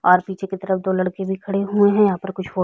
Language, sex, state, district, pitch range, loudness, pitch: Hindi, female, Chhattisgarh, Raigarh, 185-195 Hz, -20 LUFS, 190 Hz